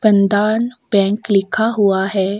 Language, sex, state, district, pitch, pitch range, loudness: Hindi, female, Uttarakhand, Tehri Garhwal, 205 Hz, 195-220 Hz, -16 LUFS